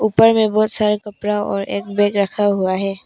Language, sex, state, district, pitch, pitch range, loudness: Hindi, female, Arunachal Pradesh, Papum Pare, 205 Hz, 200-215 Hz, -17 LUFS